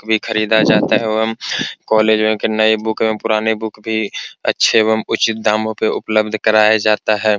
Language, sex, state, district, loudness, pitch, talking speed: Hindi, male, Bihar, Supaul, -15 LUFS, 110 Hz, 180 wpm